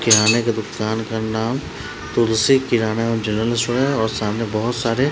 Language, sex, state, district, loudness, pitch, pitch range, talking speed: Hindi, male, Bihar, Patna, -19 LUFS, 115 Hz, 110-120 Hz, 175 wpm